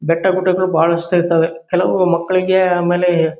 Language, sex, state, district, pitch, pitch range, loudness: Kannada, male, Karnataka, Shimoga, 175 Hz, 165-185 Hz, -15 LUFS